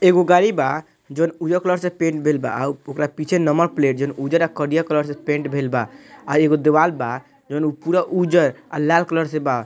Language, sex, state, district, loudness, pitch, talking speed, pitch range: Bhojpuri, male, Bihar, Muzaffarpur, -19 LUFS, 155 Hz, 255 wpm, 145-170 Hz